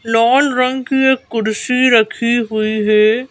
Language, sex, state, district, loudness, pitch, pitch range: Hindi, female, Madhya Pradesh, Bhopal, -14 LUFS, 235 Hz, 220-255 Hz